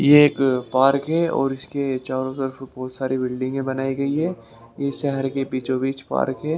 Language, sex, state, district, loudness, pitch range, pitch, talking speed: Hindi, male, Haryana, Rohtak, -22 LUFS, 130-140 Hz, 135 Hz, 190 wpm